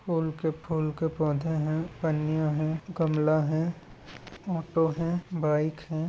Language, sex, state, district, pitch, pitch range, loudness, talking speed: Hindi, male, Chhattisgarh, Bilaspur, 160 Hz, 155-165 Hz, -29 LUFS, 140 wpm